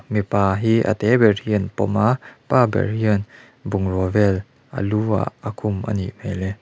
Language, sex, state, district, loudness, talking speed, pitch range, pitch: Mizo, male, Mizoram, Aizawl, -20 LUFS, 200 wpm, 100-110 Hz, 105 Hz